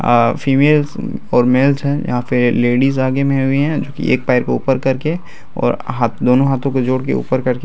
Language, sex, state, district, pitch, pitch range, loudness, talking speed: Hindi, male, Bihar, Araria, 135 Hz, 125-140 Hz, -15 LUFS, 210 wpm